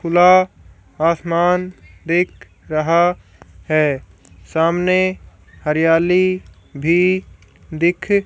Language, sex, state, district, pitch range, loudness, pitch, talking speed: Hindi, female, Haryana, Charkhi Dadri, 155-180 Hz, -17 LUFS, 170 Hz, 65 wpm